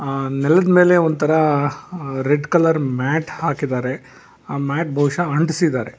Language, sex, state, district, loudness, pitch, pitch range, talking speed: Kannada, male, Karnataka, Bangalore, -18 LUFS, 145 Hz, 135-165 Hz, 130 wpm